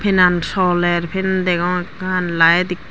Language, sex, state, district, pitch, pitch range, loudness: Chakma, female, Tripura, Dhalai, 180 Hz, 175-185 Hz, -17 LUFS